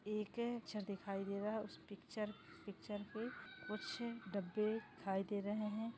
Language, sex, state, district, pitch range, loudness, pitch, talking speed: Hindi, female, Maharashtra, Dhule, 200-220 Hz, -45 LUFS, 210 Hz, 170 wpm